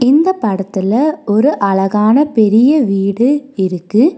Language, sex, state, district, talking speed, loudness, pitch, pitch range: Tamil, female, Tamil Nadu, Nilgiris, 100 wpm, -13 LUFS, 220 Hz, 195-280 Hz